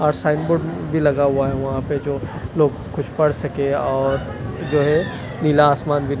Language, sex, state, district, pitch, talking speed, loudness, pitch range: Hindi, male, Delhi, New Delhi, 145 Hz, 195 wpm, -20 LUFS, 135-150 Hz